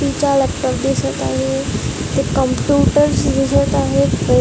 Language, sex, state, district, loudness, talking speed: Marathi, female, Maharashtra, Gondia, -16 LUFS, 120 wpm